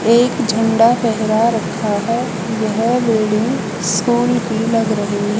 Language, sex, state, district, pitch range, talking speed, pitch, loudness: Hindi, female, Haryana, Charkhi Dadri, 215-235 Hz, 135 wpm, 225 Hz, -16 LUFS